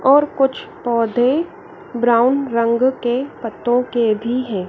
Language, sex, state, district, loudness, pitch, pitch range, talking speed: Hindi, female, Madhya Pradesh, Dhar, -18 LUFS, 245 Hz, 235-270 Hz, 130 wpm